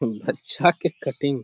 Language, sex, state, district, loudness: Hindi, male, Bihar, Jahanabad, -21 LUFS